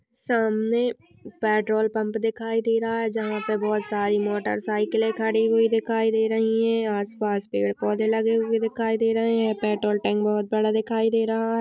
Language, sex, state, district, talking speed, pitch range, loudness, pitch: Hindi, female, Uttarakhand, Tehri Garhwal, 185 wpm, 210-225 Hz, -24 LUFS, 220 Hz